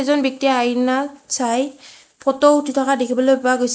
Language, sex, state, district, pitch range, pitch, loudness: Assamese, female, Assam, Sonitpur, 255-280 Hz, 270 Hz, -18 LUFS